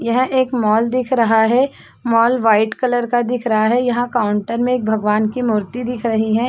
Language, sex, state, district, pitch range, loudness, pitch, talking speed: Hindi, female, Chhattisgarh, Bastar, 220-245 Hz, -17 LUFS, 235 Hz, 210 wpm